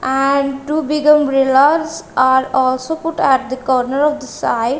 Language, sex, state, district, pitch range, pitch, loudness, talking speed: English, female, Punjab, Kapurthala, 260-300 Hz, 275 Hz, -15 LUFS, 150 wpm